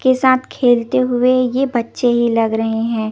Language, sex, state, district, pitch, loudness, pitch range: Hindi, female, Chandigarh, Chandigarh, 245 Hz, -16 LUFS, 230-255 Hz